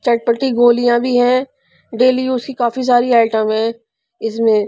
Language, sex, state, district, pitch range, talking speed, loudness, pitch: Hindi, female, Punjab, Pathankot, 230-255 Hz, 155 wpm, -15 LUFS, 240 Hz